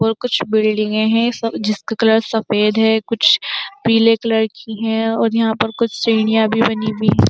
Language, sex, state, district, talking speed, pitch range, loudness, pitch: Hindi, female, Uttar Pradesh, Jyotiba Phule Nagar, 190 wpm, 215-225 Hz, -16 LUFS, 220 Hz